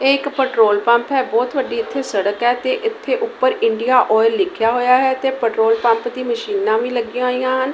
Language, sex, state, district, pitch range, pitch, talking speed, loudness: Punjabi, female, Punjab, Kapurthala, 230-275 Hz, 255 Hz, 210 wpm, -17 LUFS